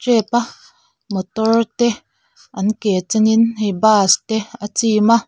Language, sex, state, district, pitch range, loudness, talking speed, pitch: Mizo, female, Mizoram, Aizawl, 205-230 Hz, -17 LUFS, 135 wpm, 220 Hz